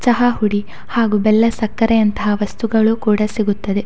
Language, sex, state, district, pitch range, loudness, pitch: Kannada, female, Karnataka, Dakshina Kannada, 210-230 Hz, -16 LUFS, 215 Hz